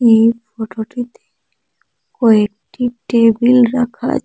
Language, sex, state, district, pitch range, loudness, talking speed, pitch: Bengali, female, Assam, Hailakandi, 225-245 Hz, -15 LUFS, 85 wpm, 235 Hz